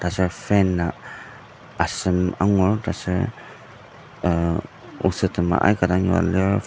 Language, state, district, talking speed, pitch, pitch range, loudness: Ao, Nagaland, Dimapur, 110 wpm, 95 Hz, 90-100 Hz, -22 LUFS